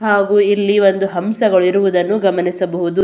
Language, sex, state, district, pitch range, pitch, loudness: Kannada, female, Karnataka, Belgaum, 185-205 Hz, 195 Hz, -15 LUFS